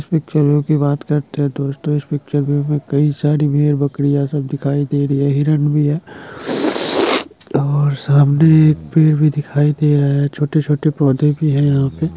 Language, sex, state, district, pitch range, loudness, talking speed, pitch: Hindi, male, Bihar, Sitamarhi, 145-150 Hz, -16 LUFS, 185 wpm, 145 Hz